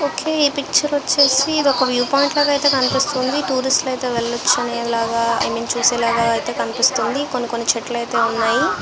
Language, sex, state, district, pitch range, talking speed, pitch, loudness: Telugu, female, Andhra Pradesh, Visakhapatnam, 235-285 Hz, 150 wpm, 255 Hz, -17 LUFS